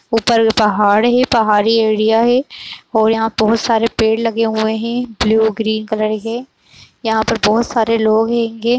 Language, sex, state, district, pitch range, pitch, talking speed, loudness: Kumaoni, female, Uttarakhand, Uttarkashi, 220-230 Hz, 225 Hz, 165 wpm, -15 LUFS